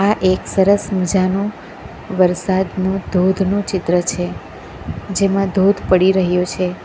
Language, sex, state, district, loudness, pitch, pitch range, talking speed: Gujarati, female, Gujarat, Valsad, -17 LUFS, 190 Hz, 185-195 Hz, 115 wpm